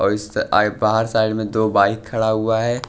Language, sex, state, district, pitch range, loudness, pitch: Hindi, male, Maharashtra, Washim, 105-110 Hz, -18 LUFS, 110 Hz